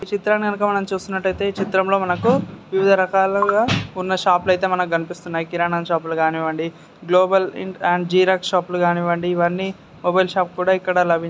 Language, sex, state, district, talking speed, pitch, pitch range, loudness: Telugu, male, Andhra Pradesh, Guntur, 135 wpm, 185 Hz, 175-190 Hz, -19 LUFS